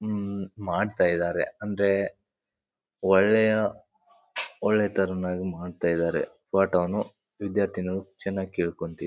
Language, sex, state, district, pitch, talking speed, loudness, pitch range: Kannada, male, Karnataka, Bijapur, 95 Hz, 85 wpm, -26 LUFS, 90-100 Hz